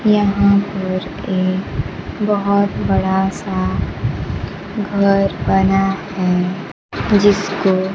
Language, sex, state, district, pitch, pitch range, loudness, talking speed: Hindi, female, Bihar, Kaimur, 195 Hz, 185-200 Hz, -17 LUFS, 85 wpm